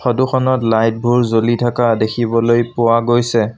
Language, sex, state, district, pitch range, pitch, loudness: Assamese, male, Assam, Sonitpur, 115-120 Hz, 120 Hz, -15 LUFS